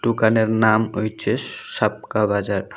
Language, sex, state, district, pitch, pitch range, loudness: Bengali, male, Tripura, Unakoti, 110 Hz, 105-110 Hz, -20 LUFS